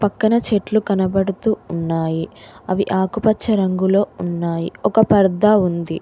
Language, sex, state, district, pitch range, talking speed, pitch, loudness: Telugu, female, Telangana, Mahabubabad, 175-215 Hz, 110 wpm, 195 Hz, -18 LUFS